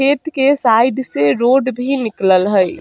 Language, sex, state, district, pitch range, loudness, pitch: Bajjika, female, Bihar, Vaishali, 195-270 Hz, -14 LUFS, 245 Hz